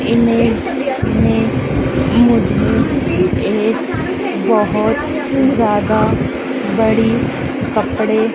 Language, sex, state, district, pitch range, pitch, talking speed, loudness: Hindi, female, Madhya Pradesh, Dhar, 220-240 Hz, 230 Hz, 65 wpm, -15 LUFS